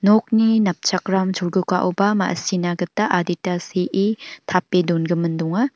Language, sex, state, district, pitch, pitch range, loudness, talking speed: Garo, female, Meghalaya, North Garo Hills, 185 Hz, 175-205 Hz, -20 LUFS, 105 wpm